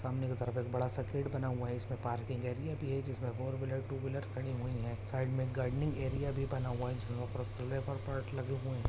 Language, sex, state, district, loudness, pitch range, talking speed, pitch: Hindi, male, Bihar, Samastipur, -38 LUFS, 125-135 Hz, 255 wpm, 130 Hz